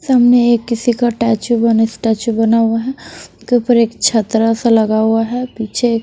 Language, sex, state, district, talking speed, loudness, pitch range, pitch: Hindi, female, Bihar, West Champaran, 200 wpm, -14 LUFS, 225-240 Hz, 230 Hz